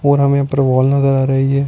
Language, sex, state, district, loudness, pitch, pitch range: Hindi, male, Maharashtra, Solapur, -14 LUFS, 135 Hz, 135-140 Hz